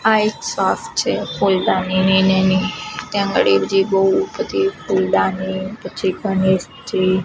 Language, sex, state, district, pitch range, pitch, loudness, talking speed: Gujarati, female, Gujarat, Gandhinagar, 185-200 Hz, 190 Hz, -18 LUFS, 125 wpm